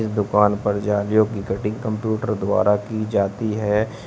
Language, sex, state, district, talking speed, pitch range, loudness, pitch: Hindi, male, Uttar Pradesh, Shamli, 145 wpm, 105-110 Hz, -21 LUFS, 105 Hz